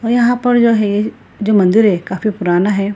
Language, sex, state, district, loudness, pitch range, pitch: Hindi, female, Bihar, Gaya, -14 LUFS, 195-230 Hz, 210 Hz